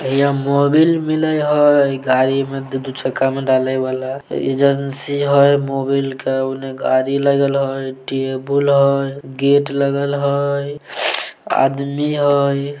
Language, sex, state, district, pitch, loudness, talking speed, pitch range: Maithili, male, Bihar, Samastipur, 140 Hz, -17 LUFS, 120 wpm, 135-140 Hz